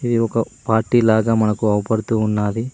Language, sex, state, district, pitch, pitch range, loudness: Telugu, male, Telangana, Mahabubabad, 110 Hz, 110-115 Hz, -18 LUFS